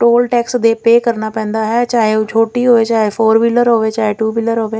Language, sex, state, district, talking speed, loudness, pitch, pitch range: Punjabi, female, Punjab, Fazilka, 235 wpm, -13 LUFS, 225 Hz, 220-235 Hz